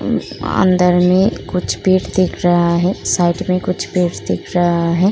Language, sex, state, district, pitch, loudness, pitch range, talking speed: Hindi, female, Uttar Pradesh, Muzaffarnagar, 180 Hz, -16 LUFS, 175-185 Hz, 165 wpm